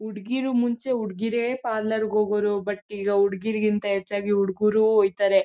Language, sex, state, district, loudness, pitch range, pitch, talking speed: Kannada, female, Karnataka, Mysore, -24 LUFS, 200-220 Hz, 210 Hz, 145 wpm